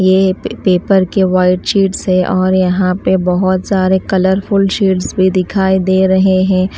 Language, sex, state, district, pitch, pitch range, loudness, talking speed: Hindi, female, Delhi, New Delhi, 190 Hz, 185-190 Hz, -12 LUFS, 160 wpm